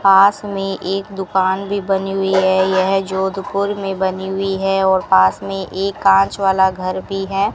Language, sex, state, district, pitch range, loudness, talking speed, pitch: Hindi, female, Rajasthan, Bikaner, 190-195 Hz, -17 LUFS, 185 wpm, 195 Hz